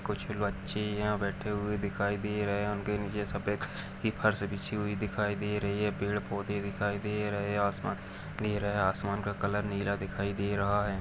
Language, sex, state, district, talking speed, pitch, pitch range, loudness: Hindi, male, Chhattisgarh, Jashpur, 185 wpm, 100 Hz, 100-105 Hz, -32 LUFS